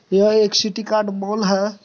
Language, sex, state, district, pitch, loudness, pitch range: Hindi, male, Bihar, Supaul, 210 Hz, -18 LUFS, 200-215 Hz